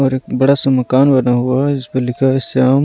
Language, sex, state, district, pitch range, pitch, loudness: Hindi, male, Punjab, Pathankot, 130-135 Hz, 130 Hz, -14 LUFS